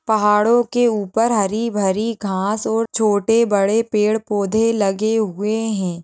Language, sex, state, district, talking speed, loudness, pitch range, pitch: Hindi, female, Maharashtra, Sindhudurg, 110 wpm, -18 LUFS, 205-225 Hz, 215 Hz